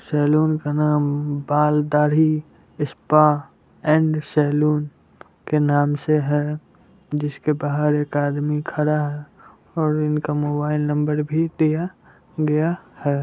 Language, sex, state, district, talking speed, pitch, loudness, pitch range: Hindi, male, Bihar, Muzaffarpur, 110 wpm, 150 Hz, -21 LUFS, 145-155 Hz